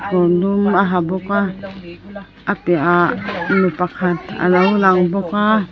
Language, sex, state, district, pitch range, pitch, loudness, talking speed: Mizo, female, Mizoram, Aizawl, 180-200 Hz, 190 Hz, -16 LUFS, 125 wpm